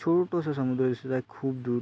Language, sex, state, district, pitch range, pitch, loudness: Marathi, male, Maharashtra, Sindhudurg, 125-160 Hz, 130 Hz, -29 LUFS